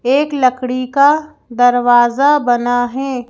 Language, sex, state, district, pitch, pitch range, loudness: Hindi, female, Madhya Pradesh, Bhopal, 255 Hz, 245-280 Hz, -13 LUFS